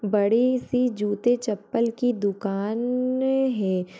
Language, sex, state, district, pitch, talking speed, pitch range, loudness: Hindi, female, Uttar Pradesh, Budaun, 230 Hz, 105 wpm, 205-250 Hz, -24 LUFS